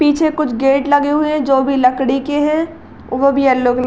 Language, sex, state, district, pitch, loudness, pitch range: Hindi, female, Uttar Pradesh, Gorakhpur, 275 Hz, -15 LUFS, 265-300 Hz